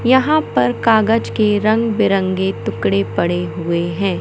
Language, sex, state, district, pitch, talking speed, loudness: Hindi, male, Madhya Pradesh, Katni, 195 Hz, 145 wpm, -16 LUFS